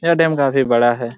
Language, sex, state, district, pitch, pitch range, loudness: Hindi, male, Jharkhand, Jamtara, 135 Hz, 120-160 Hz, -15 LUFS